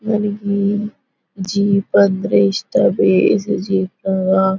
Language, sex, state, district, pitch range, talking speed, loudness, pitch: Kannada, female, Karnataka, Bellary, 185-200 Hz, 105 wpm, -16 LUFS, 190 Hz